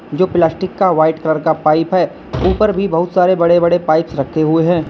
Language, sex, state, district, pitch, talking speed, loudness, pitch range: Hindi, male, Uttar Pradesh, Lalitpur, 165 Hz, 220 wpm, -14 LUFS, 155-180 Hz